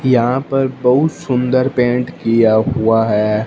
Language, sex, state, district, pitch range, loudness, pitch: Hindi, male, Punjab, Fazilka, 115-130 Hz, -15 LUFS, 125 Hz